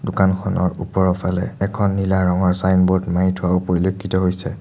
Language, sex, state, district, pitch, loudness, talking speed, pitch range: Assamese, male, Assam, Sonitpur, 95 Hz, -19 LUFS, 145 wpm, 90-95 Hz